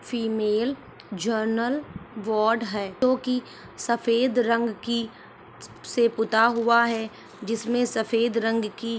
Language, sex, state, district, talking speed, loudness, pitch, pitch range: Hindi, female, Maharashtra, Aurangabad, 115 wpm, -25 LUFS, 230 Hz, 220-235 Hz